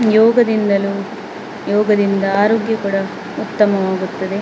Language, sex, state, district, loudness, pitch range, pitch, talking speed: Kannada, female, Karnataka, Dakshina Kannada, -16 LUFS, 195-215 Hz, 200 Hz, 80 wpm